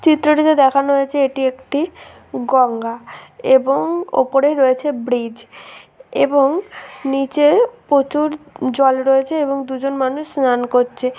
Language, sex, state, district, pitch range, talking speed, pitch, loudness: Bengali, female, West Bengal, Dakshin Dinajpur, 260-300 Hz, 105 wpm, 275 Hz, -16 LUFS